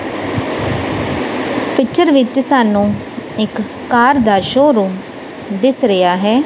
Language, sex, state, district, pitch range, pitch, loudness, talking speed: Punjabi, female, Punjab, Kapurthala, 205-265 Hz, 235 Hz, -14 LUFS, 100 wpm